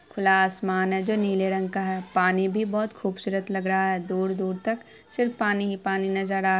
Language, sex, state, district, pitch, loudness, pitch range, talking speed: Hindi, female, Bihar, Araria, 195 Hz, -25 LUFS, 190-200 Hz, 220 wpm